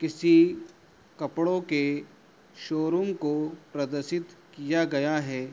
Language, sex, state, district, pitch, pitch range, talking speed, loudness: Hindi, male, Uttar Pradesh, Hamirpur, 160 Hz, 145-175 Hz, 95 wpm, -27 LUFS